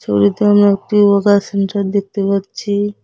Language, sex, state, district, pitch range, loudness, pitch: Bengali, female, West Bengal, Cooch Behar, 195-205 Hz, -14 LUFS, 200 Hz